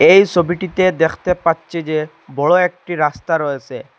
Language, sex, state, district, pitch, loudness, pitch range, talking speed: Bengali, male, Assam, Hailakandi, 170 Hz, -16 LUFS, 155-180 Hz, 135 wpm